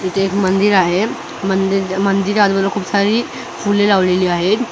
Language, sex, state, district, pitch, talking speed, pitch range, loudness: Marathi, male, Maharashtra, Mumbai Suburban, 195 Hz, 140 wpm, 190-205 Hz, -15 LUFS